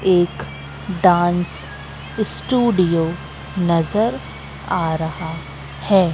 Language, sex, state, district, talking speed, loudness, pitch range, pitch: Hindi, female, Madhya Pradesh, Katni, 70 wpm, -19 LUFS, 160-185 Hz, 175 Hz